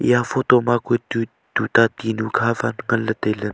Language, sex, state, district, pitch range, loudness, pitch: Wancho, male, Arunachal Pradesh, Longding, 110-120 Hz, -20 LUFS, 115 Hz